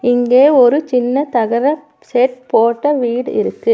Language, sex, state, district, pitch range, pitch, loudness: Tamil, female, Tamil Nadu, Nilgiris, 245-290 Hz, 250 Hz, -14 LUFS